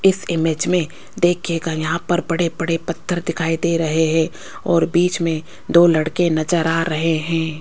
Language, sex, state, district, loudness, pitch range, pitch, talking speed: Hindi, female, Rajasthan, Jaipur, -19 LUFS, 160-175 Hz, 165 Hz, 175 wpm